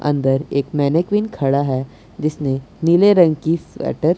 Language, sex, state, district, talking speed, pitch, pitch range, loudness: Hindi, male, Punjab, Pathankot, 145 wpm, 145 Hz, 135-165 Hz, -18 LUFS